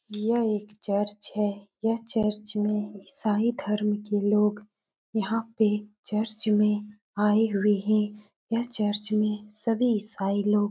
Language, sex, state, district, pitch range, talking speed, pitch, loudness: Hindi, female, Uttar Pradesh, Etah, 205-220 Hz, 140 wpm, 210 Hz, -27 LUFS